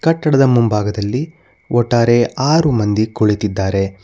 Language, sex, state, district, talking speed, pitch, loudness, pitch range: Kannada, male, Karnataka, Bangalore, 90 wpm, 120 Hz, -15 LUFS, 105-140 Hz